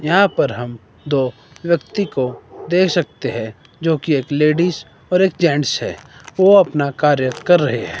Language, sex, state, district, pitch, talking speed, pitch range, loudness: Hindi, male, Himachal Pradesh, Shimla, 150 Hz, 170 wpm, 130-175 Hz, -17 LUFS